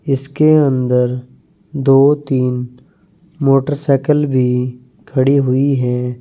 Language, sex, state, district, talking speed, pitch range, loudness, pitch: Hindi, male, Uttar Pradesh, Saharanpur, 85 wpm, 125-145 Hz, -15 LUFS, 135 Hz